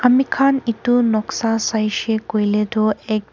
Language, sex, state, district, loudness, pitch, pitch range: Nagamese, female, Nagaland, Kohima, -18 LUFS, 220 Hz, 215-245 Hz